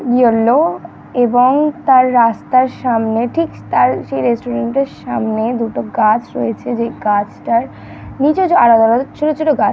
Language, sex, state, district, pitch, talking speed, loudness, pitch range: Bengali, female, West Bengal, North 24 Parganas, 245 Hz, 155 wpm, -14 LUFS, 230-275 Hz